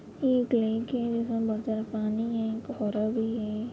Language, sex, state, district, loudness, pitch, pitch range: Hindi, female, Uttar Pradesh, Budaun, -29 LUFS, 225 Hz, 220-235 Hz